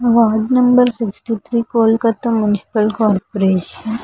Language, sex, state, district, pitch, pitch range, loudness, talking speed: Telugu, female, Andhra Pradesh, Visakhapatnam, 225 Hz, 215-235 Hz, -16 LUFS, 105 wpm